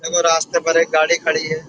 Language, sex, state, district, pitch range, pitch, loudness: Hindi, male, Uttar Pradesh, Budaun, 155-165 Hz, 165 Hz, -16 LUFS